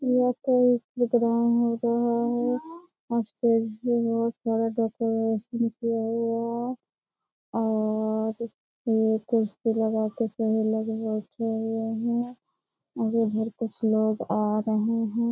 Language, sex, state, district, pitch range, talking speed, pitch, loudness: Hindi, male, Bihar, Jamui, 220-235 Hz, 115 wpm, 230 Hz, -26 LUFS